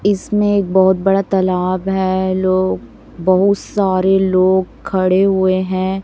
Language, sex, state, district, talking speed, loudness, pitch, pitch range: Hindi, female, Chhattisgarh, Raipur, 130 wpm, -15 LUFS, 190 Hz, 185-195 Hz